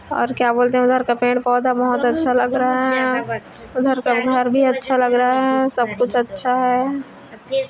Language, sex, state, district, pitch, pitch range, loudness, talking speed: Hindi, female, Chhattisgarh, Korba, 250 Hz, 245-260 Hz, -18 LUFS, 195 wpm